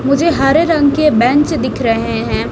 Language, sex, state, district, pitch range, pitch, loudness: Hindi, female, Chhattisgarh, Raipur, 265-310 Hz, 285 Hz, -13 LUFS